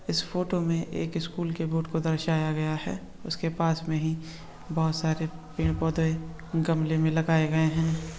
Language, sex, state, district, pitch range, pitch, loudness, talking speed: Hindi, male, Andhra Pradesh, Visakhapatnam, 160-165 Hz, 160 Hz, -28 LUFS, 175 wpm